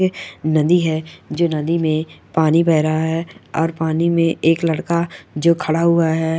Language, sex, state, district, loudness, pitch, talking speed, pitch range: Hindi, female, Bihar, Bhagalpur, -18 LUFS, 165 Hz, 170 wpm, 160-170 Hz